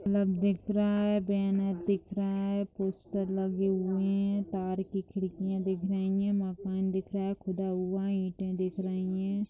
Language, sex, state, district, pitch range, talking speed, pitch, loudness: Hindi, female, Bihar, Saran, 190-200 Hz, 175 wpm, 195 Hz, -31 LUFS